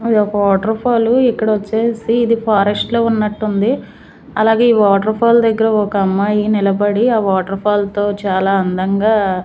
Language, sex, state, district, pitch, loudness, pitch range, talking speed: Telugu, female, Andhra Pradesh, Manyam, 210 Hz, -14 LUFS, 200-225 Hz, 125 wpm